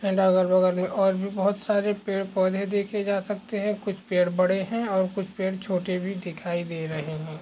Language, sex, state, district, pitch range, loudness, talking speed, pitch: Hindi, male, Maharashtra, Aurangabad, 185-200 Hz, -26 LUFS, 210 wpm, 190 Hz